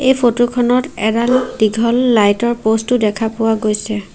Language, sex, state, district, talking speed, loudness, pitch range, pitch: Assamese, female, Assam, Sonitpur, 130 wpm, -15 LUFS, 220-245 Hz, 230 Hz